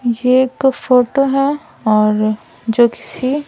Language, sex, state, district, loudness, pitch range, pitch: Hindi, female, Bihar, Patna, -15 LUFS, 230-275 Hz, 250 Hz